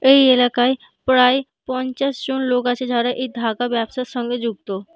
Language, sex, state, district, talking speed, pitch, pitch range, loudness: Bengali, female, West Bengal, North 24 Parganas, 155 wpm, 250 Hz, 240-260 Hz, -19 LUFS